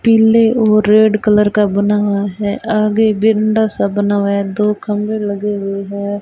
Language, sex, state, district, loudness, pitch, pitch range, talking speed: Hindi, female, Rajasthan, Bikaner, -14 LUFS, 210 Hz, 200-215 Hz, 185 wpm